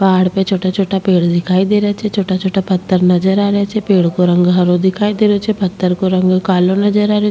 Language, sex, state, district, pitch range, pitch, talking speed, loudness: Rajasthani, female, Rajasthan, Churu, 185-200 Hz, 190 Hz, 255 wpm, -14 LUFS